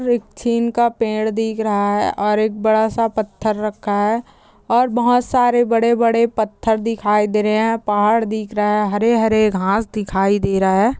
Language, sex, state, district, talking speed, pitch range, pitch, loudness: Hindi, female, Chhattisgarh, Kabirdham, 185 wpm, 210-230 Hz, 220 Hz, -17 LUFS